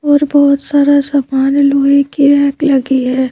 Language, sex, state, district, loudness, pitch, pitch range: Hindi, female, Madhya Pradesh, Bhopal, -11 LUFS, 280 Hz, 270-285 Hz